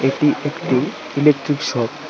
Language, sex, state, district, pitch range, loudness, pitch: Bengali, male, Tripura, West Tripura, 135-150 Hz, -19 LUFS, 145 Hz